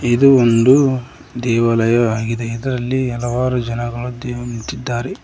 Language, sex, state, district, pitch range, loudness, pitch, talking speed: Kannada, male, Karnataka, Koppal, 115-130 Hz, -17 LUFS, 120 Hz, 105 wpm